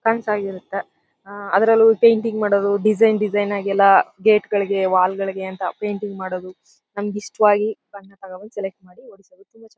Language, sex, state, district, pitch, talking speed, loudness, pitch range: Kannada, female, Karnataka, Chamarajanagar, 205 Hz, 145 wpm, -19 LUFS, 195-215 Hz